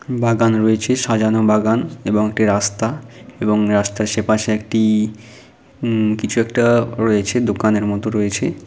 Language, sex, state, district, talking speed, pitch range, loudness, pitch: Bengali, male, West Bengal, Paschim Medinipur, 130 wpm, 105-115 Hz, -17 LUFS, 110 Hz